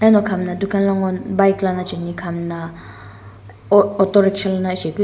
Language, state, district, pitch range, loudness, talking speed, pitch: Sumi, Nagaland, Dimapur, 170-195 Hz, -18 LUFS, 155 wpm, 185 Hz